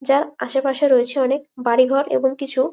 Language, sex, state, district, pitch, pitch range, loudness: Bengali, female, West Bengal, Malda, 270 Hz, 260-275 Hz, -19 LUFS